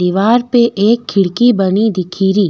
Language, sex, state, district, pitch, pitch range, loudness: Rajasthani, female, Rajasthan, Nagaur, 205 Hz, 190-235 Hz, -12 LUFS